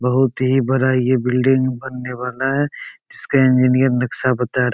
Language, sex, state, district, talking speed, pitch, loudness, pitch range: Hindi, male, Bihar, Begusarai, 175 wpm, 130 Hz, -17 LUFS, 125-130 Hz